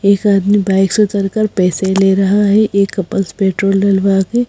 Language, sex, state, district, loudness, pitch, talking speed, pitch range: Hindi, female, Madhya Pradesh, Bhopal, -13 LUFS, 195 Hz, 185 wpm, 195-205 Hz